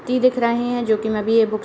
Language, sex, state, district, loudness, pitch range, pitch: Hindi, female, Uttar Pradesh, Deoria, -19 LUFS, 220-245 Hz, 235 Hz